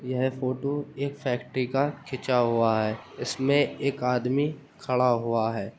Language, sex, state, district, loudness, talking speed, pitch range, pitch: Hindi, male, Uttar Pradesh, Jyotiba Phule Nagar, -27 LUFS, 145 wpm, 120-140 Hz, 130 Hz